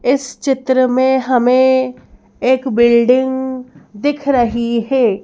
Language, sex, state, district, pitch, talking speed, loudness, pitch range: Hindi, female, Madhya Pradesh, Bhopal, 255 Hz, 105 wpm, -14 LUFS, 240-260 Hz